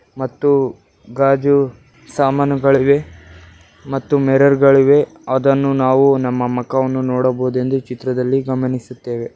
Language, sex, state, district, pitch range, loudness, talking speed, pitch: Kannada, male, Karnataka, Bellary, 125-140 Hz, -16 LUFS, 90 wpm, 130 Hz